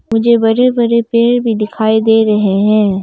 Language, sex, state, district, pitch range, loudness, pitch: Hindi, female, Arunachal Pradesh, Longding, 215-235 Hz, -12 LUFS, 225 Hz